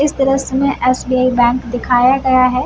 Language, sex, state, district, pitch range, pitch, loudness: Hindi, female, Bihar, Samastipur, 250-270 Hz, 255 Hz, -14 LUFS